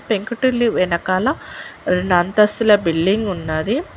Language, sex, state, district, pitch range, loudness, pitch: Telugu, female, Telangana, Mahabubabad, 180-230 Hz, -18 LUFS, 205 Hz